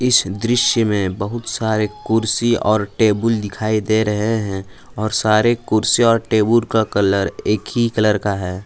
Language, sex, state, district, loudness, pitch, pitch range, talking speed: Hindi, male, Jharkhand, Palamu, -17 LUFS, 110 Hz, 105-115 Hz, 165 wpm